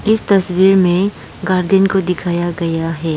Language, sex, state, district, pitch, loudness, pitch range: Hindi, female, Arunachal Pradesh, Lower Dibang Valley, 180 Hz, -14 LUFS, 170-195 Hz